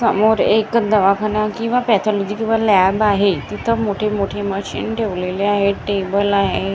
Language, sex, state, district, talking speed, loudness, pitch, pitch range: Marathi, female, Maharashtra, Gondia, 140 wpm, -17 LUFS, 205 Hz, 195-220 Hz